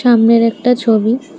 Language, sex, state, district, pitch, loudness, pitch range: Bengali, female, Tripura, West Tripura, 230 Hz, -12 LUFS, 230-245 Hz